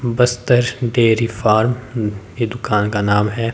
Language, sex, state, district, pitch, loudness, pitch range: Hindi, male, Himachal Pradesh, Shimla, 115 Hz, -17 LUFS, 105-120 Hz